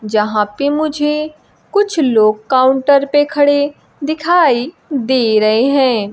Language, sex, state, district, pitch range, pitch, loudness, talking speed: Hindi, female, Bihar, Kaimur, 230-295 Hz, 280 Hz, -14 LUFS, 115 wpm